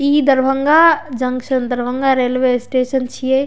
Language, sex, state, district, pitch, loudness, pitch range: Maithili, female, Bihar, Darbhanga, 260 Hz, -15 LUFS, 255-275 Hz